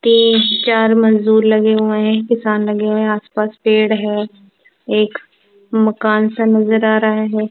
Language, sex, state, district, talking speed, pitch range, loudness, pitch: Hindi, female, Punjab, Kapurthala, 160 wpm, 215-220 Hz, -14 LUFS, 215 Hz